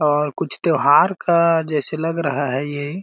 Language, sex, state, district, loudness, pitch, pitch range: Hindi, male, Chhattisgarh, Balrampur, -19 LUFS, 150 Hz, 145-165 Hz